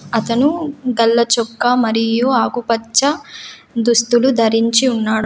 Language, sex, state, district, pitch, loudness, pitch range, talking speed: Telugu, female, Telangana, Komaram Bheem, 235 Hz, -15 LUFS, 230-250 Hz, 90 wpm